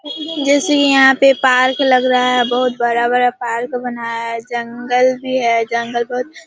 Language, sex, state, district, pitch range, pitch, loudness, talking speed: Hindi, female, Bihar, Kishanganj, 235-265 Hz, 250 Hz, -15 LUFS, 160 wpm